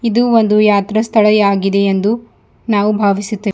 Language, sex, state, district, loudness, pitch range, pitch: Kannada, female, Karnataka, Bidar, -13 LUFS, 200-225 Hz, 210 Hz